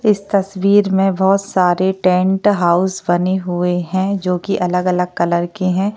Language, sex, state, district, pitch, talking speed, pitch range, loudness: Hindi, female, Maharashtra, Chandrapur, 185 Hz, 170 wpm, 180-195 Hz, -16 LUFS